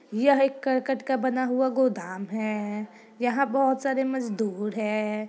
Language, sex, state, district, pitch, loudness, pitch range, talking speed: Hindi, female, Bihar, Gopalganj, 250 Hz, -26 LUFS, 215-265 Hz, 145 wpm